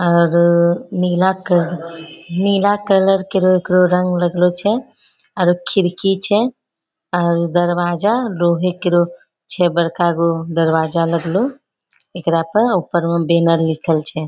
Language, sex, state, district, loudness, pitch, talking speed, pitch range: Angika, female, Bihar, Bhagalpur, -16 LUFS, 175 Hz, 130 wpm, 170-190 Hz